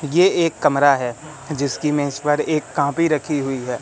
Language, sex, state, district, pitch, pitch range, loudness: Hindi, male, Madhya Pradesh, Katni, 145 Hz, 140-155 Hz, -19 LUFS